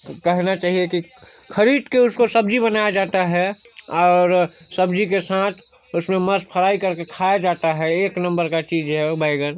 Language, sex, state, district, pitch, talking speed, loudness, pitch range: Hindi, male, Chhattisgarh, Sarguja, 185 Hz, 165 wpm, -19 LUFS, 170-200 Hz